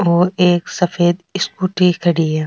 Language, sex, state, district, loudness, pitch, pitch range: Rajasthani, female, Rajasthan, Nagaur, -16 LUFS, 175 Hz, 175-180 Hz